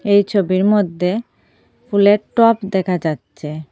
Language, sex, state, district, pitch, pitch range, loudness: Bengali, female, Assam, Hailakandi, 200 Hz, 180-210 Hz, -16 LUFS